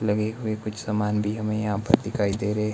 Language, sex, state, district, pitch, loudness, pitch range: Hindi, male, Himachal Pradesh, Shimla, 105 Hz, -26 LUFS, 105-110 Hz